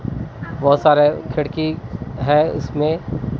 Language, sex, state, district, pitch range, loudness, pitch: Hindi, male, Bihar, Katihar, 135-150 Hz, -18 LUFS, 145 Hz